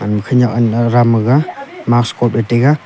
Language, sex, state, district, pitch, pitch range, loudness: Wancho, male, Arunachal Pradesh, Longding, 120 Hz, 115-125 Hz, -13 LUFS